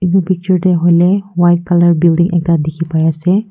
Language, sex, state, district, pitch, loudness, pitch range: Nagamese, female, Nagaland, Kohima, 175 Hz, -12 LUFS, 170-185 Hz